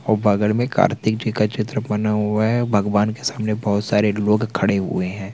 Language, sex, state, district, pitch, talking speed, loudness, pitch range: Hindi, male, Bihar, Vaishali, 105 Hz, 215 wpm, -20 LUFS, 105-110 Hz